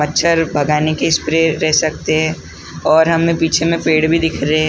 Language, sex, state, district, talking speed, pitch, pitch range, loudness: Hindi, male, Maharashtra, Gondia, 205 wpm, 160 Hz, 155-165 Hz, -15 LUFS